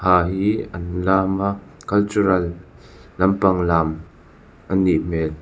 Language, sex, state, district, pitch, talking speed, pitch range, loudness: Mizo, male, Mizoram, Aizawl, 90 Hz, 120 wpm, 85-95 Hz, -20 LUFS